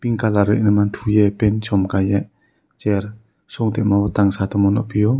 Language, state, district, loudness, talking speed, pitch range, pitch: Kokborok, Tripura, Dhalai, -18 LUFS, 150 wpm, 100-110 Hz, 105 Hz